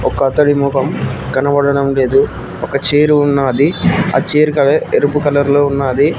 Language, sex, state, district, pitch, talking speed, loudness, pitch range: Telugu, male, Telangana, Mahabubabad, 140 Hz, 135 wpm, -13 LUFS, 135-145 Hz